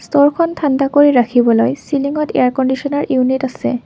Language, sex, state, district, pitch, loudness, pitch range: Assamese, female, Assam, Kamrup Metropolitan, 265 Hz, -14 LUFS, 250-290 Hz